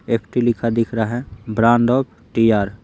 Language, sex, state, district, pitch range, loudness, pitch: Hindi, male, Bihar, Patna, 110-120 Hz, -18 LUFS, 115 Hz